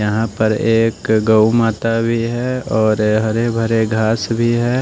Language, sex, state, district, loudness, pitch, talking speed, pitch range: Hindi, male, Odisha, Nuapada, -16 LUFS, 115 Hz, 160 wpm, 110-115 Hz